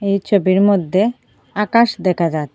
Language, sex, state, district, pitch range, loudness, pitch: Bengali, female, Assam, Hailakandi, 185-205 Hz, -16 LUFS, 195 Hz